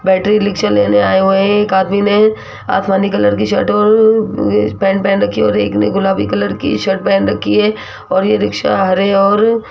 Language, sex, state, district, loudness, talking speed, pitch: Hindi, female, Rajasthan, Jaipur, -13 LUFS, 210 wpm, 190 Hz